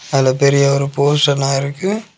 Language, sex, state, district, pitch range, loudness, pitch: Tamil, male, Tamil Nadu, Kanyakumari, 135-145 Hz, -15 LUFS, 140 Hz